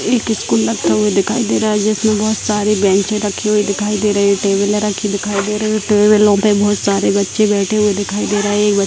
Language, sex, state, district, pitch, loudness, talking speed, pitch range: Hindi, female, Bihar, Madhepura, 210 Hz, -14 LUFS, 265 wpm, 200-210 Hz